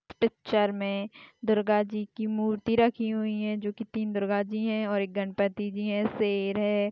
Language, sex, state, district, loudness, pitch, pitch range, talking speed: Hindi, female, Chhattisgarh, Bastar, -29 LUFS, 210 Hz, 205-220 Hz, 190 wpm